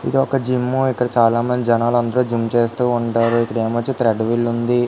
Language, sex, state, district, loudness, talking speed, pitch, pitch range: Telugu, male, Andhra Pradesh, Visakhapatnam, -18 LUFS, 185 wpm, 120 Hz, 115-125 Hz